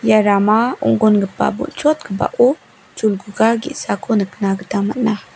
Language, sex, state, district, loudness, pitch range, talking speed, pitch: Garo, female, Meghalaya, West Garo Hills, -17 LUFS, 200-230 Hz, 110 wpm, 215 Hz